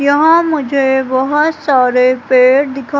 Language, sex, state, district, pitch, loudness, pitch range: Hindi, female, Madhya Pradesh, Katni, 275 Hz, -12 LUFS, 260-295 Hz